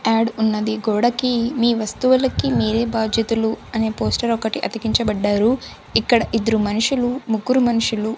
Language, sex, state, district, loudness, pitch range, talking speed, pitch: Telugu, female, Andhra Pradesh, Sri Satya Sai, -19 LUFS, 220-240 Hz, 125 wpm, 225 Hz